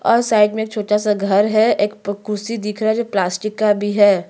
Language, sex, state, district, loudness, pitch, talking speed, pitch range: Hindi, female, Chhattisgarh, Sukma, -17 LUFS, 210 Hz, 265 wpm, 205-220 Hz